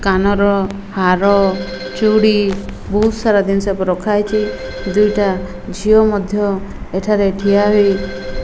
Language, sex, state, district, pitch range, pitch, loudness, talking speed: Odia, female, Odisha, Malkangiri, 185-210 Hz, 200 Hz, -15 LUFS, 105 wpm